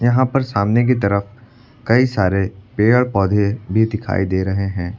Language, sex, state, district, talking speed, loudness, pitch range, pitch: Hindi, male, Uttar Pradesh, Lucknow, 170 wpm, -17 LUFS, 100-120 Hz, 105 Hz